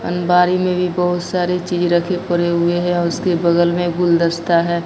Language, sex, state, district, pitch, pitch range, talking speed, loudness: Hindi, female, Bihar, Katihar, 175 Hz, 170-180 Hz, 200 wpm, -17 LUFS